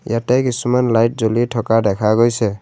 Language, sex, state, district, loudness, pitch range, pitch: Assamese, male, Assam, Kamrup Metropolitan, -16 LUFS, 110-120 Hz, 115 Hz